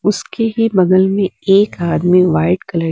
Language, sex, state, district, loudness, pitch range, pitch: Hindi, female, Bihar, West Champaran, -14 LUFS, 170-200 Hz, 185 Hz